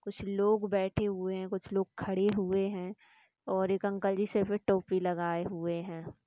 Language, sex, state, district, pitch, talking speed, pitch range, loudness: Hindi, female, Rajasthan, Nagaur, 195 Hz, 210 wpm, 185-200 Hz, -32 LUFS